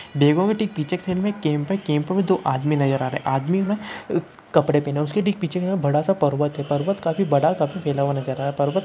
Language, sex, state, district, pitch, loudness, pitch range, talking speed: Hindi, male, Uttarakhand, Uttarkashi, 155 Hz, -22 LUFS, 145-190 Hz, 265 wpm